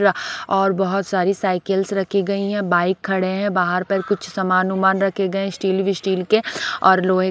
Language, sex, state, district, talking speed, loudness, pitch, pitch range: Hindi, female, Odisha, Sambalpur, 190 wpm, -19 LUFS, 195 Hz, 185-195 Hz